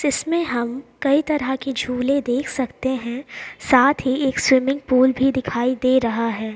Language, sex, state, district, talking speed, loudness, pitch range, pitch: Hindi, female, Bihar, Patna, 175 wpm, -20 LUFS, 250-275 Hz, 260 Hz